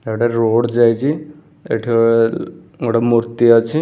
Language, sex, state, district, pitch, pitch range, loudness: Odia, male, Odisha, Khordha, 115 Hz, 115-130 Hz, -15 LUFS